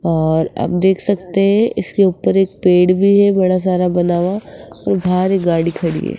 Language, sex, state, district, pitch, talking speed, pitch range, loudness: Hindi, female, Rajasthan, Jaipur, 185 Hz, 205 wpm, 175-195 Hz, -15 LUFS